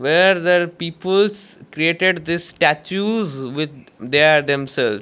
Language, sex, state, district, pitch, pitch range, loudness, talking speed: English, male, Odisha, Malkangiri, 170 Hz, 150-185 Hz, -18 LUFS, 110 wpm